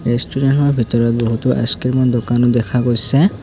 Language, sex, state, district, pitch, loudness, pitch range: Assamese, male, Assam, Kamrup Metropolitan, 120 Hz, -15 LUFS, 120-130 Hz